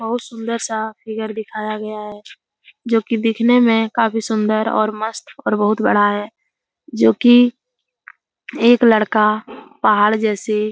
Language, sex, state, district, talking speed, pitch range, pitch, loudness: Hindi, female, Bihar, Jahanabad, 140 wpm, 215-230 Hz, 220 Hz, -17 LUFS